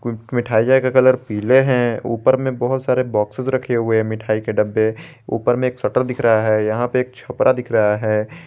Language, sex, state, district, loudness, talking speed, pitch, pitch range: Hindi, male, Jharkhand, Garhwa, -18 LUFS, 205 wpm, 120 Hz, 110-130 Hz